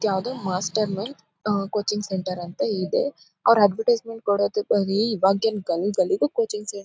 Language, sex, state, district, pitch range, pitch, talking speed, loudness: Kannada, female, Karnataka, Mysore, 185-215 Hz, 200 Hz, 160 wpm, -23 LUFS